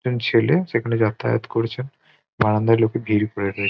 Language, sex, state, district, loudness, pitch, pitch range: Bengali, male, West Bengal, Jhargram, -21 LUFS, 115 Hz, 110-125 Hz